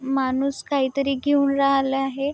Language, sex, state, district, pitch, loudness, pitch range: Marathi, female, Maharashtra, Chandrapur, 275 Hz, -22 LUFS, 270-275 Hz